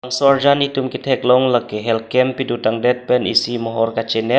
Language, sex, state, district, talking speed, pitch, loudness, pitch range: Karbi, male, Assam, Karbi Anglong, 190 wpm, 125 Hz, -17 LUFS, 115-130 Hz